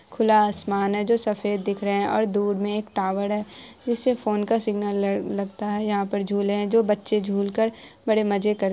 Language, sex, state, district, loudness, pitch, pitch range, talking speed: Hindi, female, Bihar, Araria, -24 LUFS, 205 Hz, 200-215 Hz, 205 wpm